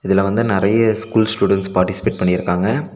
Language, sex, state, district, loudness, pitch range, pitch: Tamil, male, Tamil Nadu, Nilgiris, -17 LUFS, 95-110 Hz, 100 Hz